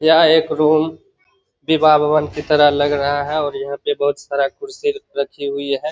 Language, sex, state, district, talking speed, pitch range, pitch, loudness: Hindi, male, Bihar, Begusarai, 190 wpm, 145-160 Hz, 150 Hz, -17 LUFS